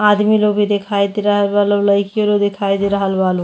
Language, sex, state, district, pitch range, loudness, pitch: Bhojpuri, female, Uttar Pradesh, Deoria, 200-210 Hz, -15 LUFS, 205 Hz